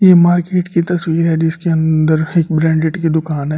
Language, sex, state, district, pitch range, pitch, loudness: Hindi, male, Delhi, New Delhi, 160-175 Hz, 160 Hz, -14 LUFS